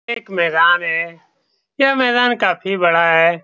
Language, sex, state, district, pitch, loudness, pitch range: Hindi, male, Bihar, Saran, 175 Hz, -15 LUFS, 170-235 Hz